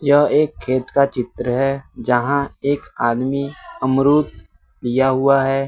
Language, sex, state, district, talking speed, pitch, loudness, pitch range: Hindi, male, Bihar, West Champaran, 135 wpm, 135 Hz, -18 LUFS, 125-140 Hz